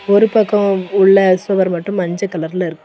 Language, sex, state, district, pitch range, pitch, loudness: Tamil, female, Tamil Nadu, Kanyakumari, 180-200 Hz, 190 Hz, -14 LUFS